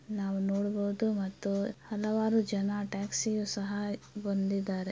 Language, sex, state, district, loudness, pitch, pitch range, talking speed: Kannada, female, Karnataka, Belgaum, -33 LUFS, 205 Hz, 200-210 Hz, 110 wpm